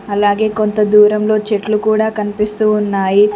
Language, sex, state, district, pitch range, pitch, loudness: Telugu, female, Telangana, Mahabubabad, 205-215 Hz, 210 Hz, -14 LUFS